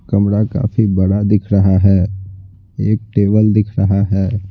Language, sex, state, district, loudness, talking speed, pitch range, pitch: Hindi, male, Bihar, Patna, -14 LUFS, 145 wpm, 95-105 Hz, 100 Hz